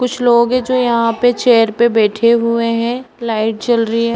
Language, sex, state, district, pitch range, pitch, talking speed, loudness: Hindi, female, Uttar Pradesh, Varanasi, 230-245 Hz, 235 Hz, 215 wpm, -14 LUFS